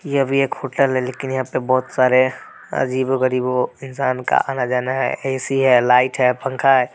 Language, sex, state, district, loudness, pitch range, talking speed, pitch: Hindi, male, Bihar, Muzaffarpur, -18 LUFS, 125-135 Hz, 190 wpm, 130 Hz